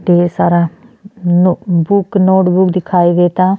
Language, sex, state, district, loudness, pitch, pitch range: Bhojpuri, female, Uttar Pradesh, Deoria, -12 LUFS, 180 Hz, 175-190 Hz